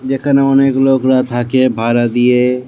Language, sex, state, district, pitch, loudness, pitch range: Bengali, male, West Bengal, Jalpaiguri, 130 Hz, -12 LUFS, 125-135 Hz